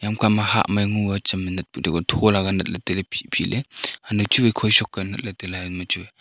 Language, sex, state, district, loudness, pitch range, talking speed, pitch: Wancho, male, Arunachal Pradesh, Longding, -21 LUFS, 95-110 Hz, 240 wpm, 100 Hz